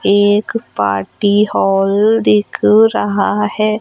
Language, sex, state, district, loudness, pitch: Hindi, female, Madhya Pradesh, Umaria, -13 LUFS, 200 Hz